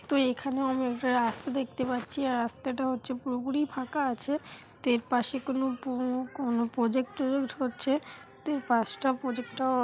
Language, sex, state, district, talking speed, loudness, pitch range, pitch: Bengali, female, West Bengal, Paschim Medinipur, 150 wpm, -30 LUFS, 245-270 Hz, 260 Hz